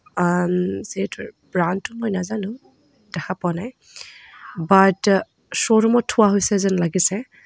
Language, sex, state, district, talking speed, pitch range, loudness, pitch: Assamese, female, Assam, Kamrup Metropolitan, 105 wpm, 180-220 Hz, -20 LUFS, 195 Hz